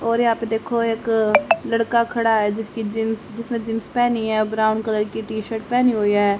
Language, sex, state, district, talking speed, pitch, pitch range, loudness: Hindi, female, Haryana, Jhajjar, 215 wpm, 225 Hz, 220-230 Hz, -21 LUFS